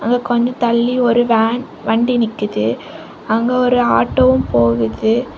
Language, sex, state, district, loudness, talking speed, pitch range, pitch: Tamil, female, Tamil Nadu, Kanyakumari, -15 LUFS, 125 wpm, 225-245 Hz, 235 Hz